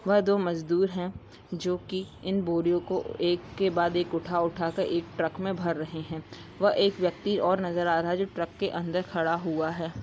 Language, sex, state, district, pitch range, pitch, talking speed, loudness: Hindi, male, Bihar, Samastipur, 170-190 Hz, 175 Hz, 210 wpm, -28 LUFS